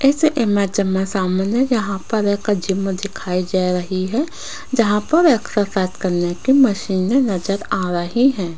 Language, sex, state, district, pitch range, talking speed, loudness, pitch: Hindi, female, Rajasthan, Jaipur, 185-240 Hz, 160 wpm, -18 LUFS, 200 Hz